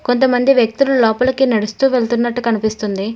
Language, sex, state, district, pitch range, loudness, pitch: Telugu, female, Telangana, Hyderabad, 220-260 Hz, -15 LUFS, 240 Hz